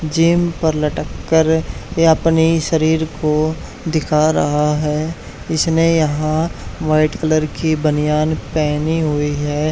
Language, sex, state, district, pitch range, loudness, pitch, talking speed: Hindi, male, Haryana, Charkhi Dadri, 150-160 Hz, -17 LUFS, 155 Hz, 125 wpm